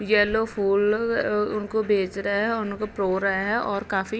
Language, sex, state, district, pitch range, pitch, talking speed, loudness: Hindi, female, Bihar, Vaishali, 200-215 Hz, 210 Hz, 185 wpm, -24 LUFS